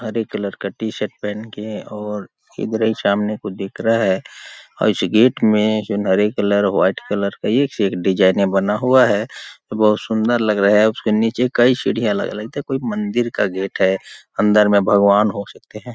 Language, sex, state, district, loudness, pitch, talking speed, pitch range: Hindi, male, Chhattisgarh, Balrampur, -18 LUFS, 105 Hz, 200 wpm, 100-110 Hz